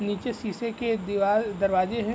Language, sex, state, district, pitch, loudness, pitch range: Hindi, male, Bihar, Muzaffarpur, 210 Hz, -26 LUFS, 200-230 Hz